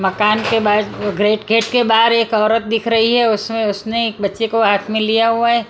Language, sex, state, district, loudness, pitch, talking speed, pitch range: Hindi, female, Punjab, Kapurthala, -15 LUFS, 225 Hz, 230 wpm, 210-230 Hz